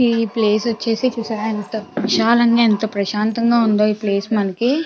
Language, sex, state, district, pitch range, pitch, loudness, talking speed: Telugu, female, Andhra Pradesh, Chittoor, 210-235 Hz, 220 Hz, -18 LUFS, 160 wpm